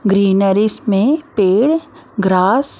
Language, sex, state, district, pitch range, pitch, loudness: Hindi, female, Maharashtra, Mumbai Suburban, 195-285 Hz, 205 Hz, -14 LUFS